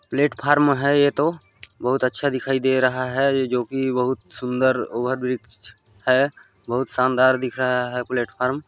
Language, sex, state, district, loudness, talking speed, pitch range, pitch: Hindi, male, Chhattisgarh, Balrampur, -21 LUFS, 150 wpm, 125-135 Hz, 130 Hz